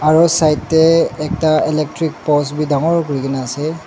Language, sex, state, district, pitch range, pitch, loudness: Nagamese, male, Nagaland, Dimapur, 150-160 Hz, 155 Hz, -15 LUFS